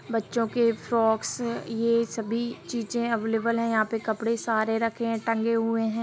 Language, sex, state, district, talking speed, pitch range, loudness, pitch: Hindi, female, Bihar, Sitamarhi, 170 wpm, 225-230 Hz, -26 LUFS, 230 Hz